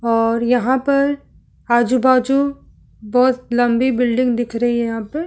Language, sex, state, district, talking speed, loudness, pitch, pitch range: Hindi, female, Chhattisgarh, Kabirdham, 160 wpm, -17 LUFS, 245 Hz, 235-260 Hz